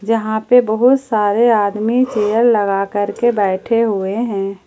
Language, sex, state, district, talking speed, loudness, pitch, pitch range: Hindi, female, Jharkhand, Ranchi, 140 wpm, -15 LUFS, 215 Hz, 205-235 Hz